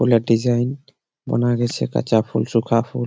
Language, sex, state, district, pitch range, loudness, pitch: Bengali, male, West Bengal, Malda, 115-120 Hz, -20 LUFS, 120 Hz